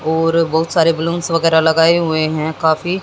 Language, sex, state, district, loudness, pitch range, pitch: Hindi, female, Haryana, Jhajjar, -15 LUFS, 160-165 Hz, 165 Hz